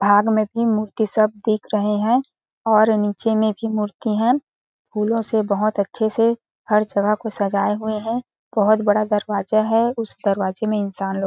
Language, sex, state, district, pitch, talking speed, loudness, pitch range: Hindi, female, Chhattisgarh, Balrampur, 215 Hz, 180 wpm, -20 LUFS, 205-220 Hz